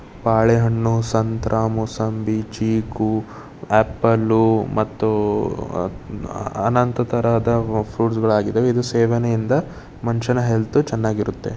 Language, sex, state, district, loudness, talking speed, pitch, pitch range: Kannada, male, Karnataka, Bidar, -20 LUFS, 80 wpm, 110 Hz, 110-115 Hz